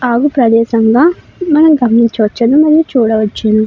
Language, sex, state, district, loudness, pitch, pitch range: Telugu, female, Karnataka, Bellary, -10 LUFS, 235 Hz, 225-300 Hz